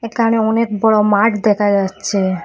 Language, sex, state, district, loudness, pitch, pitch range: Bengali, female, Assam, Hailakandi, -15 LUFS, 210 Hz, 205-225 Hz